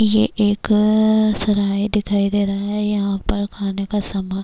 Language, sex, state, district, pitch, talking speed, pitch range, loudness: Urdu, female, Bihar, Kishanganj, 205 Hz, 160 wpm, 200-210 Hz, -19 LUFS